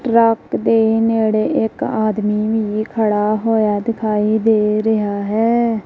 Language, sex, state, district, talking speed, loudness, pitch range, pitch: Punjabi, female, Punjab, Kapurthala, 125 wpm, -16 LUFS, 210-225 Hz, 220 Hz